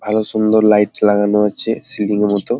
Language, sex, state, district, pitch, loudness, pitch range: Bengali, male, West Bengal, Jalpaiguri, 105 Hz, -15 LUFS, 105-110 Hz